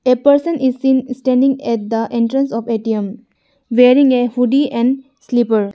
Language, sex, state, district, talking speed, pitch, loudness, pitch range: English, female, Arunachal Pradesh, Lower Dibang Valley, 155 wpm, 250 Hz, -15 LUFS, 230-270 Hz